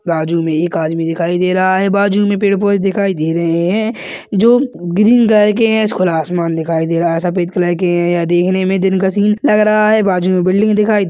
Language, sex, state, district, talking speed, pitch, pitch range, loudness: Hindi, male, Chhattisgarh, Balrampur, 225 wpm, 185 Hz, 170-210 Hz, -13 LUFS